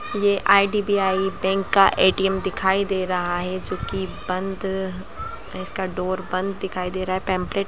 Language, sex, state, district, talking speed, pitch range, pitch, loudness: Hindi, female, Bihar, Lakhisarai, 165 wpm, 185-195 Hz, 190 Hz, -22 LUFS